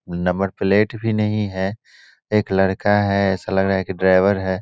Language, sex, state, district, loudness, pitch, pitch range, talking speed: Hindi, male, Bihar, Begusarai, -19 LUFS, 95 Hz, 95-105 Hz, 195 wpm